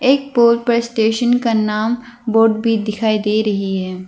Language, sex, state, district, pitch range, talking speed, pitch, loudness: Hindi, female, Arunachal Pradesh, Lower Dibang Valley, 215-235 Hz, 175 wpm, 225 Hz, -16 LUFS